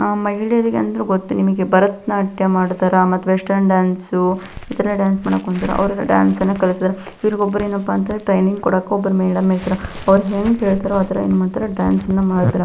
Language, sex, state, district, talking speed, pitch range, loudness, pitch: Kannada, female, Karnataka, Belgaum, 150 wpm, 185-200 Hz, -17 LUFS, 190 Hz